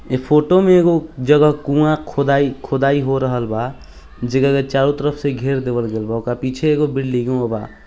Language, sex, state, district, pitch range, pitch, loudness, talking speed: Hindi, male, Bihar, East Champaran, 125-150 Hz, 135 Hz, -17 LUFS, 220 wpm